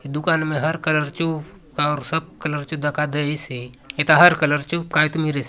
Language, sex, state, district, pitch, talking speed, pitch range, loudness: Halbi, male, Chhattisgarh, Bastar, 150 Hz, 185 wpm, 150-160 Hz, -20 LUFS